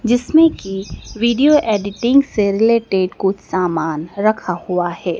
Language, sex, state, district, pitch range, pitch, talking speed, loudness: Hindi, female, Madhya Pradesh, Dhar, 180-235 Hz, 200 Hz, 125 wpm, -16 LUFS